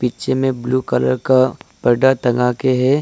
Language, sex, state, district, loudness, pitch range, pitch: Hindi, male, Arunachal Pradesh, Lower Dibang Valley, -16 LUFS, 120-130 Hz, 130 Hz